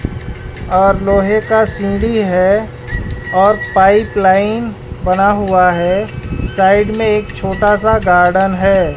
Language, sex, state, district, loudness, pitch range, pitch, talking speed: Hindi, male, Bihar, West Champaran, -13 LUFS, 190-210 Hz, 195 Hz, 120 wpm